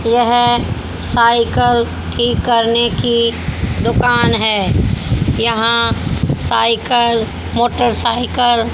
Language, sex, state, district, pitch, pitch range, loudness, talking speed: Hindi, female, Haryana, Rohtak, 235 Hz, 225-235 Hz, -14 LUFS, 75 wpm